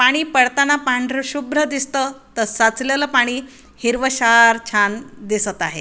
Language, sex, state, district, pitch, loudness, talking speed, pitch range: Marathi, female, Maharashtra, Aurangabad, 255 Hz, -17 LUFS, 125 wpm, 230-270 Hz